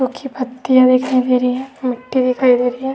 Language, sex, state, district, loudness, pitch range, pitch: Hindi, female, Uttar Pradesh, Etah, -16 LUFS, 250-260 Hz, 255 Hz